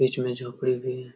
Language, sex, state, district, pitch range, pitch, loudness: Hindi, male, Bihar, Jamui, 125-130 Hz, 125 Hz, -28 LUFS